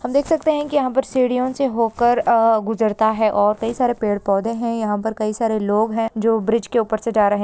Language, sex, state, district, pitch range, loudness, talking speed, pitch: Hindi, female, West Bengal, Purulia, 215-245 Hz, -19 LUFS, 260 wpm, 225 Hz